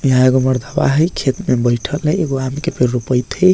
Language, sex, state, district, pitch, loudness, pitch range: Bajjika, male, Bihar, Vaishali, 130 Hz, -16 LUFS, 125-150 Hz